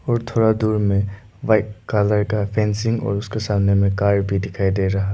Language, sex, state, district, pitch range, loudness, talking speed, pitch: Hindi, male, Arunachal Pradesh, Lower Dibang Valley, 100-110 Hz, -20 LUFS, 200 wpm, 105 Hz